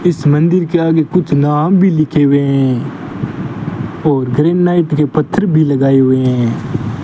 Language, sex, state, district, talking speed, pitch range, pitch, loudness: Hindi, male, Rajasthan, Bikaner, 155 wpm, 135-165 Hz, 150 Hz, -13 LUFS